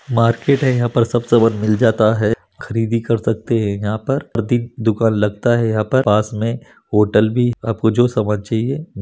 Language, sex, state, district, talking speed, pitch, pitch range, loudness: Hindi, male, Chhattisgarh, Bastar, 195 wpm, 115 Hz, 110-120 Hz, -17 LUFS